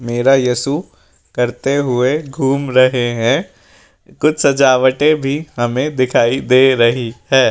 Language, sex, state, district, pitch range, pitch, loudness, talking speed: Hindi, male, Rajasthan, Jaipur, 125-140 Hz, 130 Hz, -14 LUFS, 120 wpm